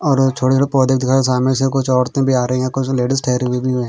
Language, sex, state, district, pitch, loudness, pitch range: Hindi, male, Bihar, Patna, 130 Hz, -16 LUFS, 125-135 Hz